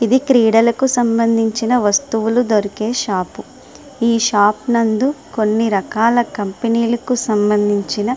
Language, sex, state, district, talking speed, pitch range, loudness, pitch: Telugu, female, Andhra Pradesh, Srikakulam, 105 wpm, 210-240 Hz, -16 LUFS, 230 Hz